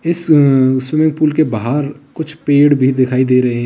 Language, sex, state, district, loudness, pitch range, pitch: Hindi, male, Uttar Pradesh, Lalitpur, -13 LUFS, 130-155 Hz, 140 Hz